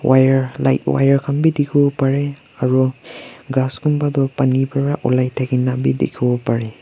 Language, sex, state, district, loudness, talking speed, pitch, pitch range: Nagamese, male, Nagaland, Kohima, -17 LUFS, 165 wpm, 130 Hz, 125-140 Hz